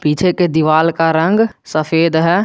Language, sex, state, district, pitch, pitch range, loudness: Hindi, male, Jharkhand, Garhwa, 165 Hz, 160-180 Hz, -14 LUFS